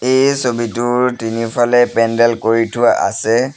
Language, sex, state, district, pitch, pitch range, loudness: Assamese, male, Assam, Sonitpur, 120 Hz, 115-125 Hz, -15 LUFS